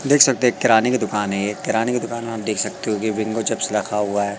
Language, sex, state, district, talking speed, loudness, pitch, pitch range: Hindi, male, Madhya Pradesh, Katni, 275 wpm, -20 LUFS, 110 Hz, 105-120 Hz